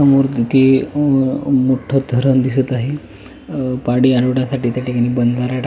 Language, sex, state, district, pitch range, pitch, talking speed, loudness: Marathi, male, Maharashtra, Pune, 125-135 Hz, 130 Hz, 150 wpm, -16 LUFS